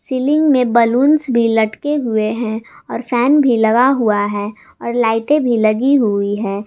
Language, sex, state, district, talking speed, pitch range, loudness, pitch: Hindi, female, Jharkhand, Garhwa, 170 wpm, 215-265 Hz, -15 LUFS, 235 Hz